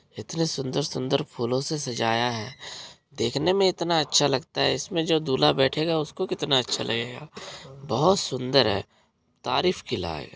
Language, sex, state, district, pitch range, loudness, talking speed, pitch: Hindi, male, Bihar, Araria, 125-165 Hz, -25 LUFS, 155 wpm, 140 Hz